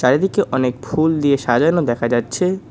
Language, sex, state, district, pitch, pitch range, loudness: Bengali, male, West Bengal, Cooch Behar, 140 Hz, 120-170 Hz, -17 LUFS